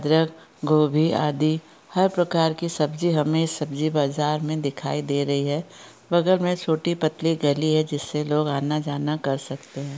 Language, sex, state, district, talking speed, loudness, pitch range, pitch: Hindi, female, Chhattisgarh, Bastar, 170 wpm, -23 LUFS, 145-160 Hz, 155 Hz